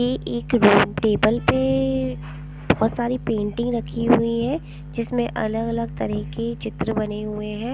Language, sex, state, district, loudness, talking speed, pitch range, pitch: Hindi, female, Punjab, Pathankot, -22 LUFS, 155 wpm, 150-230 Hz, 215 Hz